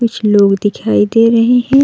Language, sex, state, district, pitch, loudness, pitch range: Hindi, female, Uttar Pradesh, Jalaun, 225 Hz, -11 LUFS, 205-235 Hz